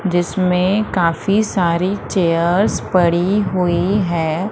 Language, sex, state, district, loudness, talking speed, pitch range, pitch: Hindi, female, Madhya Pradesh, Umaria, -17 LUFS, 95 wpm, 175-195 Hz, 180 Hz